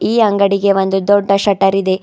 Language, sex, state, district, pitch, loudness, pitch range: Kannada, female, Karnataka, Bidar, 195 Hz, -13 LUFS, 195-200 Hz